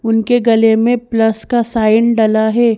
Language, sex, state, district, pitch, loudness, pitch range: Hindi, female, Madhya Pradesh, Bhopal, 225 Hz, -13 LUFS, 225-235 Hz